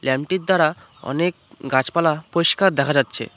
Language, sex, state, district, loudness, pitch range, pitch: Bengali, male, West Bengal, Cooch Behar, -20 LUFS, 130-170 Hz, 150 Hz